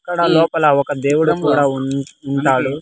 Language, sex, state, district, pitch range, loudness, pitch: Telugu, male, Andhra Pradesh, Sri Satya Sai, 135-160 Hz, -16 LUFS, 145 Hz